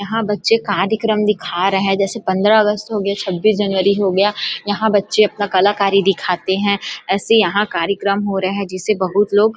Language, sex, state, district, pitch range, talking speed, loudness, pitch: Hindi, female, Chhattisgarh, Bilaspur, 195-210 Hz, 200 wpm, -16 LUFS, 200 Hz